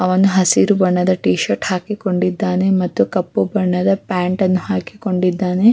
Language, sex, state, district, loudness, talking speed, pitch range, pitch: Kannada, female, Karnataka, Raichur, -17 LUFS, 95 wpm, 180-195 Hz, 185 Hz